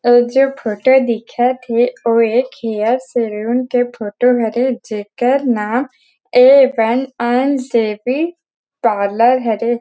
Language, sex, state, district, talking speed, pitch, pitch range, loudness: Chhattisgarhi, female, Chhattisgarh, Rajnandgaon, 135 wpm, 245 Hz, 230-255 Hz, -15 LUFS